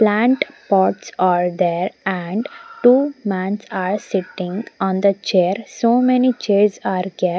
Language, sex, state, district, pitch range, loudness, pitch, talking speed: English, female, Punjab, Pathankot, 185-235 Hz, -18 LUFS, 200 Hz, 140 wpm